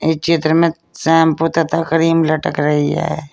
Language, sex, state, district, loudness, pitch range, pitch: Hindi, female, Uttar Pradesh, Saharanpur, -15 LUFS, 155-165 Hz, 165 Hz